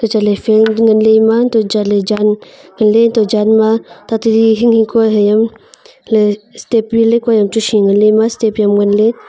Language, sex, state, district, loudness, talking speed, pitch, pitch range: Wancho, female, Arunachal Pradesh, Longding, -12 LUFS, 215 wpm, 220 Hz, 210-225 Hz